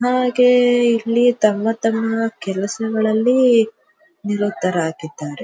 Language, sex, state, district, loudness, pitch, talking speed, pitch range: Kannada, female, Karnataka, Dharwad, -17 LUFS, 225 Hz, 65 wpm, 205-245 Hz